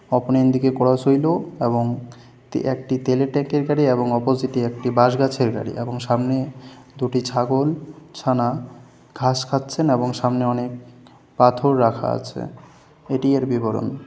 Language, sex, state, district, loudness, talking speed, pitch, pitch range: Bengali, male, West Bengal, Jalpaiguri, -20 LUFS, 125 wpm, 130 Hz, 125-135 Hz